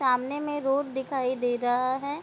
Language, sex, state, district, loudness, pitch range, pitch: Hindi, female, Bihar, Kishanganj, -28 LUFS, 255-280 Hz, 265 Hz